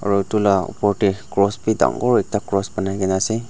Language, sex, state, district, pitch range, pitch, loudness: Nagamese, male, Nagaland, Dimapur, 100-105 Hz, 100 Hz, -19 LUFS